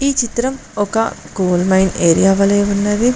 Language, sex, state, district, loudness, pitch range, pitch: Telugu, female, Telangana, Mahabubabad, -15 LUFS, 190-235 Hz, 205 Hz